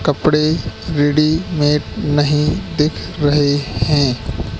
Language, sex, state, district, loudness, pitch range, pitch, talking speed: Hindi, male, Madhya Pradesh, Katni, -16 LUFS, 130-150 Hz, 145 Hz, 80 wpm